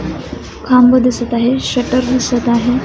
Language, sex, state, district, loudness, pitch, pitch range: Marathi, female, Maharashtra, Aurangabad, -13 LUFS, 250 Hz, 240-255 Hz